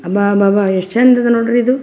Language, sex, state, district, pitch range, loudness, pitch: Kannada, female, Karnataka, Gulbarga, 200-240 Hz, -12 LUFS, 215 Hz